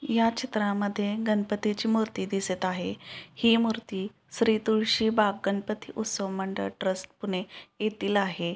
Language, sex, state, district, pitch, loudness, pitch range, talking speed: Marathi, female, Maharashtra, Pune, 210 Hz, -28 LUFS, 195-220 Hz, 120 wpm